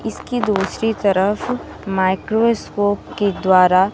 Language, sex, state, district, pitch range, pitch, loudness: Hindi, female, Bihar, West Champaran, 190-220 Hz, 205 Hz, -18 LUFS